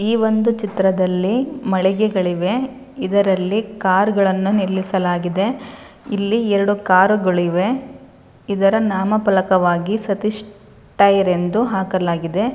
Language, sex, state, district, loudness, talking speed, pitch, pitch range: Kannada, female, Karnataka, Shimoga, -18 LUFS, 85 wpm, 200 Hz, 185-215 Hz